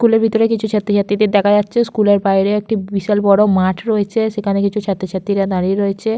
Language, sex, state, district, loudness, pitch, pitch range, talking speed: Bengali, female, West Bengal, Jhargram, -15 LUFS, 205 Hz, 195-220 Hz, 205 wpm